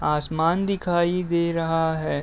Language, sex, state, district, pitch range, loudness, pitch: Hindi, male, Uttar Pradesh, Deoria, 160-175 Hz, -23 LUFS, 165 Hz